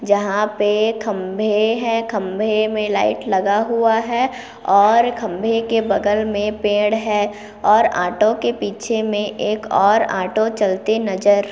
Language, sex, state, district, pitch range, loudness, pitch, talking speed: Hindi, female, Chhattisgarh, Kabirdham, 205-225 Hz, -18 LUFS, 210 Hz, 140 wpm